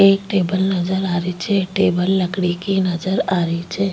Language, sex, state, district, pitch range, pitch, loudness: Rajasthani, female, Rajasthan, Nagaur, 180-195 Hz, 185 Hz, -19 LUFS